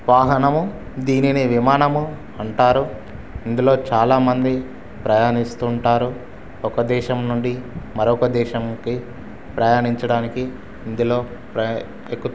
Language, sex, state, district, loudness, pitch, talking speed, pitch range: Telugu, male, Andhra Pradesh, Srikakulam, -19 LUFS, 120 Hz, 85 wpm, 120-130 Hz